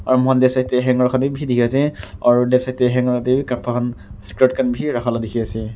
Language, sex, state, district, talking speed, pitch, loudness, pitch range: Nagamese, male, Nagaland, Kohima, 230 wpm, 125 Hz, -18 LUFS, 120-130 Hz